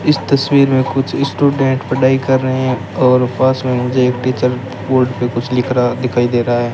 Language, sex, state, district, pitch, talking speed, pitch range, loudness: Hindi, male, Rajasthan, Bikaner, 130 Hz, 215 wpm, 125-130 Hz, -15 LUFS